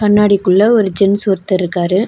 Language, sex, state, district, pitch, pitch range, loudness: Tamil, female, Tamil Nadu, Nilgiris, 200 Hz, 185-210 Hz, -12 LUFS